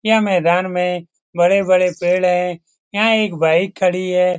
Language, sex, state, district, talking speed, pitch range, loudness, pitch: Hindi, male, Bihar, Lakhisarai, 150 wpm, 175-185 Hz, -16 LUFS, 180 Hz